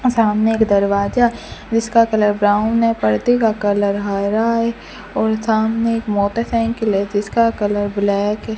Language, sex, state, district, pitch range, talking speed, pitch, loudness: Hindi, female, Rajasthan, Bikaner, 205-230 Hz, 145 wpm, 220 Hz, -17 LUFS